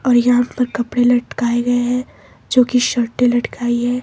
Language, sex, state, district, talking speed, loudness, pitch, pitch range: Hindi, male, Himachal Pradesh, Shimla, 180 wpm, -17 LUFS, 245 Hz, 240-250 Hz